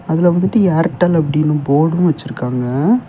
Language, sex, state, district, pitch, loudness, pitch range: Tamil, male, Tamil Nadu, Kanyakumari, 160 Hz, -15 LUFS, 145-175 Hz